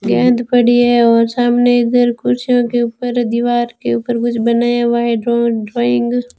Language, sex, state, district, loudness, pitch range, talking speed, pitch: Hindi, female, Rajasthan, Bikaner, -14 LUFS, 235-245 Hz, 170 wpm, 240 Hz